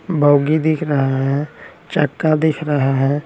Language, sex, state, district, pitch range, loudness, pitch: Hindi, male, Bihar, Patna, 140-155 Hz, -17 LUFS, 150 Hz